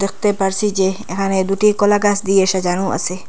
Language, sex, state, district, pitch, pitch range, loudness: Bengali, female, Assam, Hailakandi, 195 Hz, 190-205 Hz, -16 LUFS